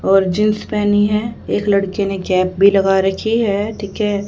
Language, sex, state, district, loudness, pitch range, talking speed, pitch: Hindi, female, Haryana, Charkhi Dadri, -16 LUFS, 195-210 Hz, 195 wpm, 200 Hz